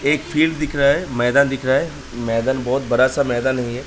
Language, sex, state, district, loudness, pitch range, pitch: Hindi, male, Uttar Pradesh, Gorakhpur, -19 LUFS, 125-145 Hz, 130 Hz